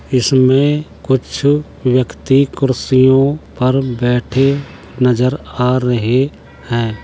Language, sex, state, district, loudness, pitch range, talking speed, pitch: Hindi, male, Uttar Pradesh, Jalaun, -14 LUFS, 125-135 Hz, 85 wpm, 130 Hz